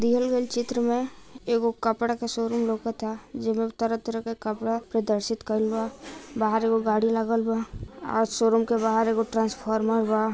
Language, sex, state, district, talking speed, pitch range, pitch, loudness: Bhojpuri, female, Bihar, Gopalganj, 160 wpm, 225-235 Hz, 225 Hz, -26 LUFS